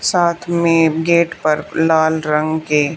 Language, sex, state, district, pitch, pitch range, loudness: Hindi, female, Haryana, Charkhi Dadri, 160 Hz, 155-170 Hz, -16 LUFS